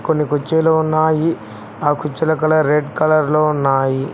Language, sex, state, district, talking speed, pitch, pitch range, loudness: Telugu, male, Telangana, Mahabubabad, 145 wpm, 150 Hz, 145-155 Hz, -16 LUFS